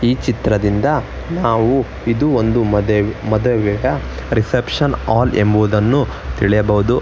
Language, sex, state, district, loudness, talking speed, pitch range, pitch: Kannada, male, Karnataka, Bangalore, -16 LUFS, 95 wpm, 105-125 Hz, 110 Hz